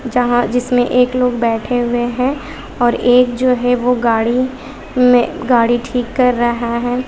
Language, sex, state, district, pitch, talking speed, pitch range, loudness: Hindi, female, Bihar, West Champaran, 245 Hz, 160 wpm, 240-250 Hz, -15 LUFS